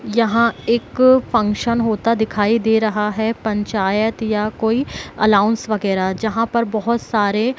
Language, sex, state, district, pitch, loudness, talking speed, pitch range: Hindi, female, Jharkhand, Sahebganj, 220 Hz, -18 LUFS, 135 wpm, 210-230 Hz